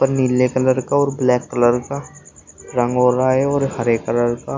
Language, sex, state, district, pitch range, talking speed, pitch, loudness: Hindi, male, Uttar Pradesh, Shamli, 120-135 Hz, 225 wpm, 125 Hz, -17 LUFS